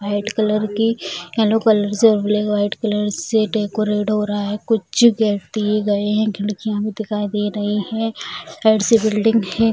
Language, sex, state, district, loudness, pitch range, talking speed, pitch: Hindi, female, Bihar, Jamui, -18 LUFS, 205-220 Hz, 165 wpm, 215 Hz